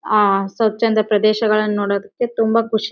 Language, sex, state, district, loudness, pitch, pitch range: Kannada, female, Karnataka, Bellary, -17 LUFS, 215 Hz, 210-225 Hz